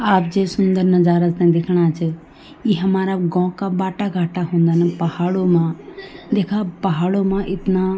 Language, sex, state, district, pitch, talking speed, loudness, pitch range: Garhwali, female, Uttarakhand, Tehri Garhwal, 185 Hz, 160 wpm, -18 LUFS, 175-195 Hz